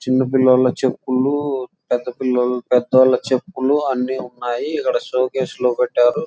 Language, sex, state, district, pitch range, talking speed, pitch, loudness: Telugu, male, Andhra Pradesh, Chittoor, 125-135 Hz, 115 wpm, 130 Hz, -18 LUFS